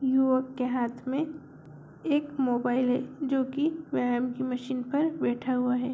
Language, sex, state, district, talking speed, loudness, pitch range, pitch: Hindi, male, Bihar, Darbhanga, 160 wpm, -29 LUFS, 250-280 Hz, 260 Hz